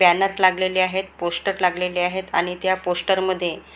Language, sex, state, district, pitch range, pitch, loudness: Marathi, female, Maharashtra, Gondia, 180-190 Hz, 185 Hz, -21 LUFS